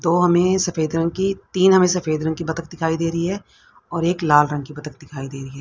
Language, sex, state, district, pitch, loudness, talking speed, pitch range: Hindi, female, Haryana, Rohtak, 165 Hz, -20 LUFS, 265 wpm, 150-180 Hz